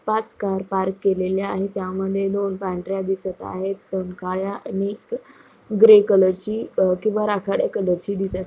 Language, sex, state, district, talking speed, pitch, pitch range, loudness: Marathi, female, Maharashtra, Sindhudurg, 150 wpm, 195 Hz, 190-205 Hz, -21 LUFS